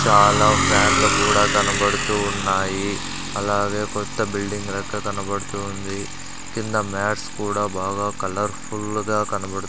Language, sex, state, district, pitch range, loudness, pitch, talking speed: Telugu, male, Andhra Pradesh, Sri Satya Sai, 100-105 Hz, -21 LUFS, 100 Hz, 110 wpm